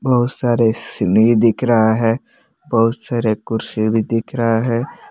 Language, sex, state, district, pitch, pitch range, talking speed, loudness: Hindi, male, Jharkhand, Palamu, 115 Hz, 115-120 Hz, 150 wpm, -17 LUFS